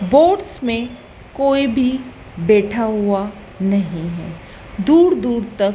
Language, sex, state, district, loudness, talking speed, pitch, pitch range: Hindi, female, Madhya Pradesh, Dhar, -17 LUFS, 115 wpm, 220 Hz, 195-260 Hz